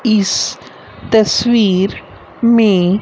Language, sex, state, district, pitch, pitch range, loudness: Hindi, female, Haryana, Rohtak, 215 Hz, 195-230 Hz, -13 LUFS